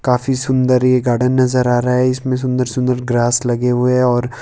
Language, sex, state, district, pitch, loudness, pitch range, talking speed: Hindi, male, Himachal Pradesh, Shimla, 125 Hz, -15 LUFS, 125-130 Hz, 215 wpm